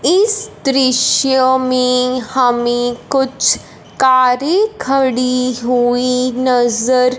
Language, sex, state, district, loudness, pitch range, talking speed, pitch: Hindi, male, Punjab, Fazilka, -14 LUFS, 250-270 Hz, 75 wpm, 255 Hz